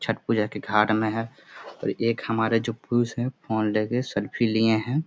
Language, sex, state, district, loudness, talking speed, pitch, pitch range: Hindi, male, Bihar, Jamui, -25 LUFS, 215 wpm, 115 Hz, 110-120 Hz